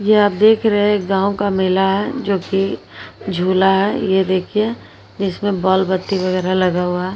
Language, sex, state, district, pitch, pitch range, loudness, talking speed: Hindi, female, Uttar Pradesh, Jyotiba Phule Nagar, 190 Hz, 185-205 Hz, -17 LUFS, 170 wpm